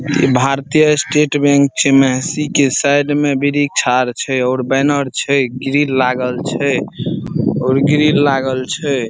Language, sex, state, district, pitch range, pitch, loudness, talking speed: Maithili, male, Bihar, Saharsa, 130-145 Hz, 140 Hz, -14 LUFS, 140 wpm